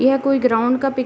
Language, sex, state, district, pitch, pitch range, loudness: Hindi, female, Uttar Pradesh, Deoria, 260 Hz, 250-270 Hz, -17 LUFS